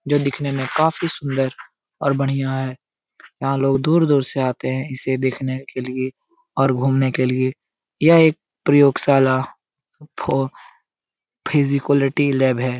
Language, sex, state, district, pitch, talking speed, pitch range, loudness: Hindi, male, Bihar, Jahanabad, 135 Hz, 135 wpm, 130-145 Hz, -19 LUFS